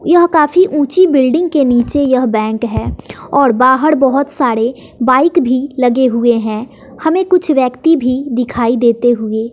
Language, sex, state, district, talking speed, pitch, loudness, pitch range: Hindi, female, Bihar, West Champaran, 155 wpm, 260 Hz, -12 LUFS, 240-300 Hz